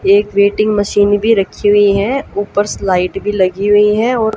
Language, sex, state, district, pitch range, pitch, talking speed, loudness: Hindi, female, Haryana, Jhajjar, 200-210 Hz, 205 Hz, 190 wpm, -13 LUFS